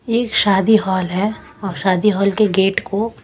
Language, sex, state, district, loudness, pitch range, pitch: Hindi, female, Chhattisgarh, Raipur, -16 LUFS, 190-215 Hz, 200 Hz